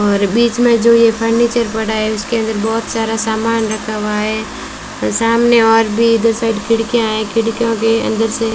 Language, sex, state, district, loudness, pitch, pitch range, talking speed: Hindi, female, Rajasthan, Bikaner, -14 LUFS, 225 Hz, 220-230 Hz, 205 wpm